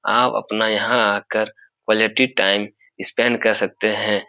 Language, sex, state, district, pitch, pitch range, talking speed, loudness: Hindi, male, Bihar, Supaul, 110 Hz, 105-110 Hz, 140 wpm, -19 LUFS